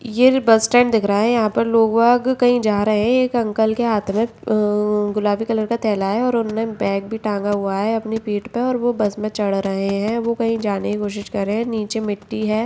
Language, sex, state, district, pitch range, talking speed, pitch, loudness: Hindi, female, Bihar, Samastipur, 205-230 Hz, 250 wpm, 220 Hz, -19 LUFS